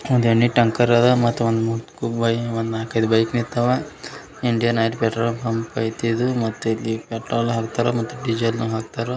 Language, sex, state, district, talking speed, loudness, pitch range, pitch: Kannada, male, Karnataka, Bijapur, 85 wpm, -21 LUFS, 115-120 Hz, 115 Hz